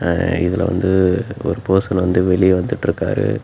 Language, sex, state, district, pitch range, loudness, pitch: Tamil, male, Tamil Nadu, Namakkal, 90-95 Hz, -17 LUFS, 95 Hz